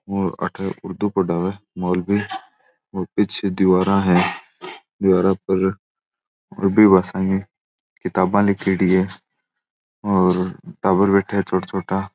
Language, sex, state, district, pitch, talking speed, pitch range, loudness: Rajasthani, male, Rajasthan, Churu, 95 Hz, 120 wpm, 95-100 Hz, -19 LUFS